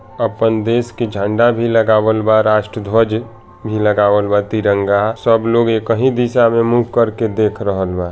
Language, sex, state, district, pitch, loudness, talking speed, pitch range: Bhojpuri, male, Bihar, Saran, 110 Hz, -15 LUFS, 170 wpm, 105-115 Hz